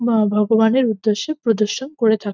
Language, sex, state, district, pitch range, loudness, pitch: Bengali, female, West Bengal, North 24 Parganas, 215-240 Hz, -18 LUFS, 225 Hz